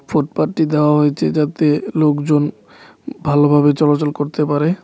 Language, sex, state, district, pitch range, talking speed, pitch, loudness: Bengali, male, Tripura, West Tripura, 145-150 Hz, 125 wpm, 150 Hz, -16 LUFS